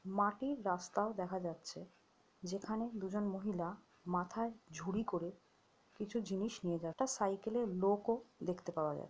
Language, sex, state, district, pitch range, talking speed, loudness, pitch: Bengali, female, West Bengal, Jhargram, 180-220 Hz, 130 wpm, -40 LUFS, 195 Hz